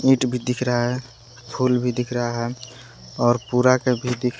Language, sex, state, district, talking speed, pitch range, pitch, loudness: Hindi, male, Jharkhand, Palamu, 205 wpm, 120-125 Hz, 125 Hz, -22 LUFS